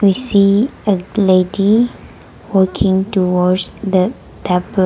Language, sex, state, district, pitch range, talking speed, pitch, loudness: English, female, Nagaland, Kohima, 185-205 Hz, 100 wpm, 195 Hz, -15 LUFS